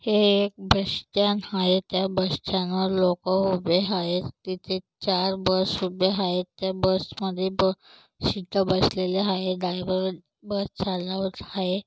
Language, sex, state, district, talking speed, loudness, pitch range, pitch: Marathi, female, Maharashtra, Solapur, 130 wpm, -25 LUFS, 185-195 Hz, 190 Hz